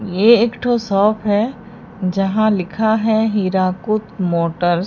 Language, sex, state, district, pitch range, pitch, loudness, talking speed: Hindi, female, Odisha, Sambalpur, 185-220 Hz, 210 Hz, -17 LUFS, 135 wpm